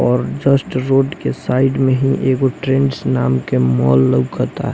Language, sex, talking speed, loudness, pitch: Bhojpuri, male, 140 wpm, -16 LUFS, 130 Hz